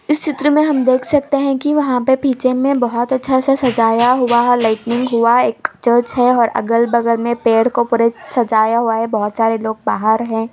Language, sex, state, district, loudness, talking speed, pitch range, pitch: Hindi, female, Uttar Pradesh, Ghazipur, -15 LUFS, 210 wpm, 230-260 Hz, 240 Hz